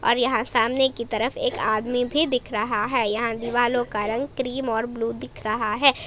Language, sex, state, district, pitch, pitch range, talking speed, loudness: Hindi, female, Jharkhand, Palamu, 240 Hz, 225-255 Hz, 210 wpm, -23 LUFS